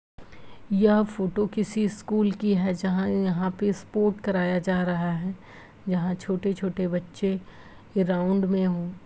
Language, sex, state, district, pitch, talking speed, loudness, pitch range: Hindi, female, Bihar, Gopalganj, 190 Hz, 150 wpm, -26 LUFS, 185-205 Hz